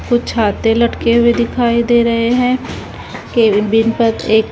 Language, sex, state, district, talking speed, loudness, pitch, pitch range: Hindi, female, Chhattisgarh, Raipur, 145 wpm, -14 LUFS, 235 Hz, 225-235 Hz